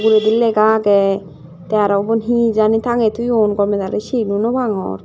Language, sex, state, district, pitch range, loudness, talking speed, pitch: Chakma, female, Tripura, Dhalai, 200-225 Hz, -16 LUFS, 165 wpm, 215 Hz